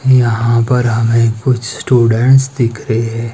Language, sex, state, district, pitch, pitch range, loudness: Hindi, male, Himachal Pradesh, Shimla, 115 Hz, 115-125 Hz, -13 LUFS